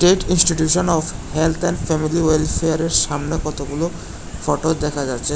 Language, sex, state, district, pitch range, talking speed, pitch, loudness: Bengali, male, Tripura, West Tripura, 150-170 Hz, 135 wpm, 160 Hz, -19 LUFS